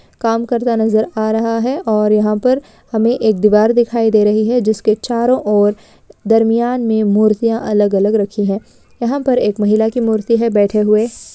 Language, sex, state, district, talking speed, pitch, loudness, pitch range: Hindi, female, Bihar, Darbhanga, 185 wpm, 220 Hz, -14 LUFS, 210-235 Hz